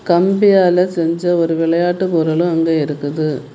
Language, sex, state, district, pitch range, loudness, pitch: Tamil, female, Tamil Nadu, Kanyakumari, 160-175 Hz, -15 LUFS, 165 Hz